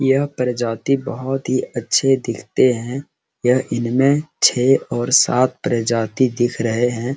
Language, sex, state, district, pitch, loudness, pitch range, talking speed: Hindi, male, Bihar, Araria, 125 Hz, -18 LUFS, 120-135 Hz, 140 wpm